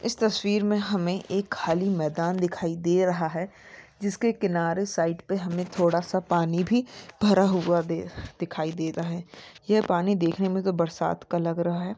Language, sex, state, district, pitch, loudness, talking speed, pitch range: Hindi, female, Jharkhand, Jamtara, 180 Hz, -26 LUFS, 190 wpm, 170-195 Hz